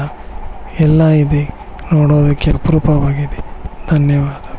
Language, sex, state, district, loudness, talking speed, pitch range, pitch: Kannada, male, Karnataka, Bellary, -13 LUFS, 65 wpm, 145-155 Hz, 150 Hz